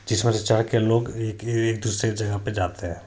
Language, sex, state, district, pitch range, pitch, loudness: Hindi, male, Bihar, Supaul, 105-115 Hz, 110 Hz, -24 LUFS